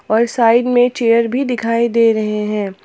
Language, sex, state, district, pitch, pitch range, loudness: Hindi, female, Jharkhand, Palamu, 230 Hz, 220-240 Hz, -15 LUFS